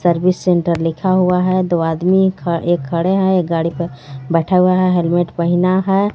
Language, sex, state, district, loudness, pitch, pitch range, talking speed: Hindi, female, Jharkhand, Garhwa, -16 LUFS, 175 Hz, 170-185 Hz, 175 wpm